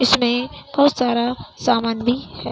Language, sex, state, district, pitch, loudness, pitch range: Hindi, female, Uttar Pradesh, Hamirpur, 245 Hz, -19 LUFS, 240-255 Hz